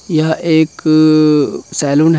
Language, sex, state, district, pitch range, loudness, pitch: Hindi, male, Bihar, Sitamarhi, 150-160 Hz, -12 LUFS, 155 Hz